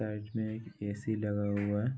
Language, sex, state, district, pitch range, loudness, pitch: Hindi, male, Bihar, Bhagalpur, 105-110 Hz, -35 LUFS, 105 Hz